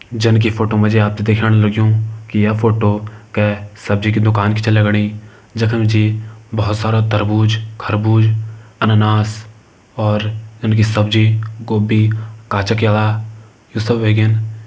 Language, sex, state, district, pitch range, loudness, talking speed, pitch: Garhwali, male, Uttarakhand, Uttarkashi, 105-110 Hz, -15 LUFS, 145 wpm, 110 Hz